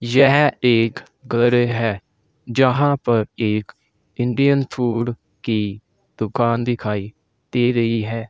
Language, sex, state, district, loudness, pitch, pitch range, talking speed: Hindi, male, Uttar Pradesh, Saharanpur, -19 LUFS, 120 Hz, 110-130 Hz, 110 wpm